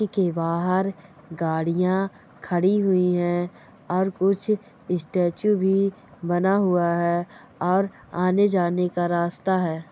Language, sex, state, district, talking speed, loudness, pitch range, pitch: Hindi, female, Bihar, Bhagalpur, 110 wpm, -23 LUFS, 175-195 Hz, 180 Hz